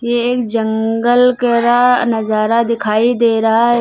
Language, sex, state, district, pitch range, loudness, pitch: Hindi, female, Uttar Pradesh, Lucknow, 225-240 Hz, -13 LUFS, 235 Hz